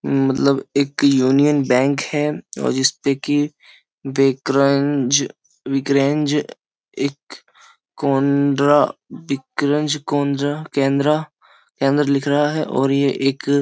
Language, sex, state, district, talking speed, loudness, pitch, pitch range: Hindi, male, Uttar Pradesh, Jyotiba Phule Nagar, 90 wpm, -18 LUFS, 140 Hz, 135-145 Hz